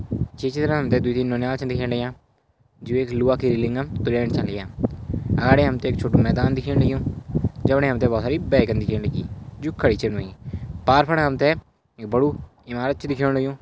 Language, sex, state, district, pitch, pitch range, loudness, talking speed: Hindi, male, Uttarakhand, Uttarkashi, 130 Hz, 120-135 Hz, -22 LUFS, 195 wpm